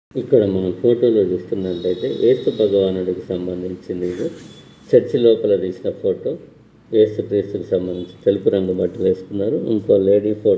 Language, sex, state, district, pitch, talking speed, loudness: Telugu, male, Karnataka, Bellary, 95 Hz, 135 wpm, -19 LUFS